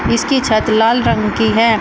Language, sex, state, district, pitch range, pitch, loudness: Hindi, female, Uttar Pradesh, Shamli, 220-230 Hz, 225 Hz, -14 LUFS